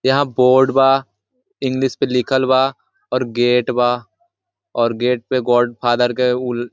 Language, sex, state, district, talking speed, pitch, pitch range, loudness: Hindi, male, Jharkhand, Sahebganj, 150 wpm, 125 Hz, 120-130 Hz, -17 LUFS